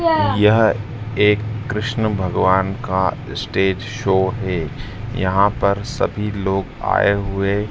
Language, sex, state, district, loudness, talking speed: Hindi, female, Madhya Pradesh, Dhar, -19 LUFS, 110 wpm